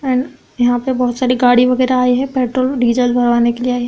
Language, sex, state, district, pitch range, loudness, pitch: Hindi, female, Uttar Pradesh, Budaun, 245-255 Hz, -14 LUFS, 250 Hz